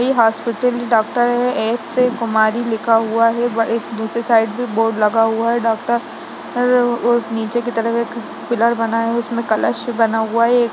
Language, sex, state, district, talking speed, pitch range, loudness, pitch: Hindi, female, Bihar, Lakhisarai, 185 wpm, 225-240 Hz, -17 LUFS, 230 Hz